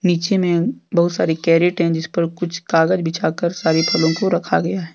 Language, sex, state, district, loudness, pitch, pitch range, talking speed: Hindi, male, Jharkhand, Deoghar, -18 LUFS, 170 Hz, 165-175 Hz, 220 wpm